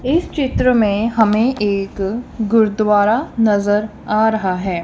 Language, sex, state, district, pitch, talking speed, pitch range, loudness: Hindi, female, Punjab, Kapurthala, 215 Hz, 125 wpm, 205-230 Hz, -16 LUFS